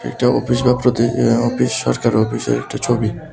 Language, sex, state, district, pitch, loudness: Bengali, male, Tripura, West Tripura, 115 Hz, -17 LUFS